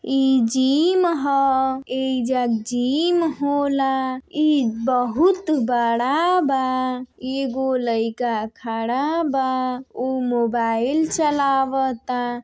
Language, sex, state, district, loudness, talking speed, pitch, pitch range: Bhojpuri, female, Uttar Pradesh, Deoria, -21 LUFS, 80 wpm, 260 Hz, 245-280 Hz